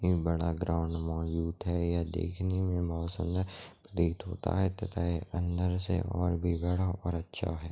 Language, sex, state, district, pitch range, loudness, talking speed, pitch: Hindi, male, Chhattisgarh, Raigarh, 85-90 Hz, -33 LUFS, 180 wpm, 90 Hz